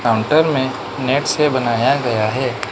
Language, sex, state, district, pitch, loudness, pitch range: Hindi, male, Manipur, Imphal West, 130 Hz, -17 LUFS, 115-140 Hz